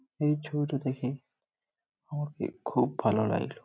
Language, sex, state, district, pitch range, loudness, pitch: Bengali, male, West Bengal, Malda, 135-150 Hz, -31 LUFS, 145 Hz